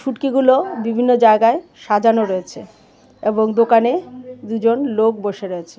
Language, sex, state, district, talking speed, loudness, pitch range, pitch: Bengali, female, Tripura, West Tripura, 115 wpm, -16 LUFS, 215-250 Hz, 230 Hz